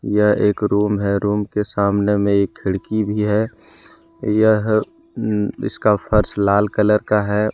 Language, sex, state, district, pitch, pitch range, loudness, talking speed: Hindi, male, Jharkhand, Deoghar, 105 Hz, 100-110 Hz, -18 LUFS, 150 wpm